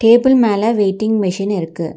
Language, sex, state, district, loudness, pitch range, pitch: Tamil, female, Tamil Nadu, Nilgiris, -15 LUFS, 190-225 Hz, 205 Hz